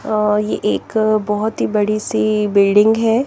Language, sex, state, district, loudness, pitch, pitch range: Hindi, female, Chandigarh, Chandigarh, -16 LUFS, 215 Hz, 210-220 Hz